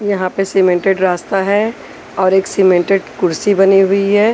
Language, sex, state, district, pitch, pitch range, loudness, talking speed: Hindi, female, Haryana, Rohtak, 195 Hz, 185-200 Hz, -13 LUFS, 165 wpm